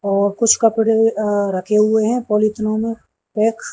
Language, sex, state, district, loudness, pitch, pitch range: Hindi, male, Haryana, Jhajjar, -17 LUFS, 215 Hz, 210-225 Hz